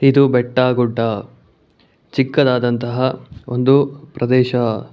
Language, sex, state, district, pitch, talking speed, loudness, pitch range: Kannada, male, Karnataka, Bangalore, 125 Hz, 60 wpm, -17 LUFS, 120-135 Hz